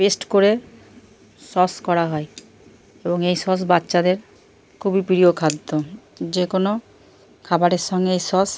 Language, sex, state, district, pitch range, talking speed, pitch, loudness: Bengali, male, Jharkhand, Jamtara, 175-195 Hz, 135 wpm, 180 Hz, -20 LUFS